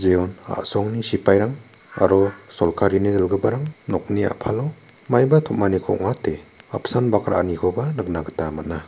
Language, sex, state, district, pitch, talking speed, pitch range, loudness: Garo, male, Meghalaya, West Garo Hills, 100 Hz, 115 wpm, 95-115 Hz, -21 LUFS